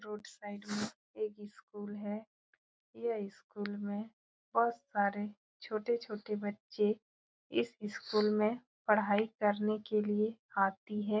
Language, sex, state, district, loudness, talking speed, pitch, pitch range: Hindi, female, Bihar, Saran, -36 LUFS, 120 wpm, 210 Hz, 205-215 Hz